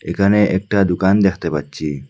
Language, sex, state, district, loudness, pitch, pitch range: Bengali, male, Assam, Hailakandi, -17 LUFS, 95 Hz, 80-100 Hz